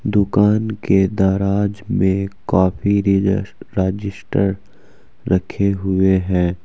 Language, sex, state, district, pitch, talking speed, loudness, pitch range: Hindi, male, Uttar Pradesh, Saharanpur, 95 Hz, 90 wpm, -18 LUFS, 95-100 Hz